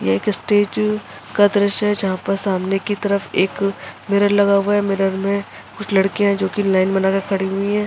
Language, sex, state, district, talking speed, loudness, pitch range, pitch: Hindi, female, Uttar Pradesh, Jalaun, 215 wpm, -18 LUFS, 195-205 Hz, 200 Hz